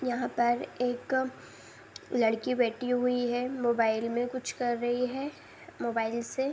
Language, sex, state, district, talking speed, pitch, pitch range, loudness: Hindi, female, Bihar, Saharsa, 145 wpm, 245 Hz, 235-255 Hz, -30 LUFS